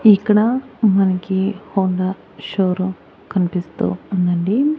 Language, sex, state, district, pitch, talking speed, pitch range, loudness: Telugu, female, Andhra Pradesh, Annamaya, 190 Hz, 90 wpm, 185-210 Hz, -18 LUFS